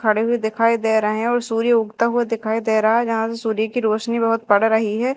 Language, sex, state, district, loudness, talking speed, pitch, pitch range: Hindi, female, Madhya Pradesh, Dhar, -19 LUFS, 265 wpm, 225 Hz, 220-235 Hz